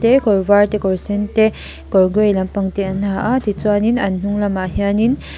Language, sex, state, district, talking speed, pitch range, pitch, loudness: Mizo, female, Mizoram, Aizawl, 225 wpm, 195-215 Hz, 205 Hz, -16 LUFS